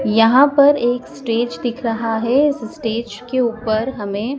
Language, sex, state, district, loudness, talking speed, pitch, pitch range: Hindi, female, Madhya Pradesh, Dhar, -17 LUFS, 150 wpm, 240 Hz, 225-265 Hz